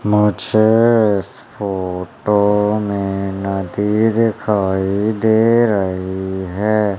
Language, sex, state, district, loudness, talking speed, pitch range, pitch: Hindi, male, Madhya Pradesh, Umaria, -16 LUFS, 75 wpm, 95-110 Hz, 105 Hz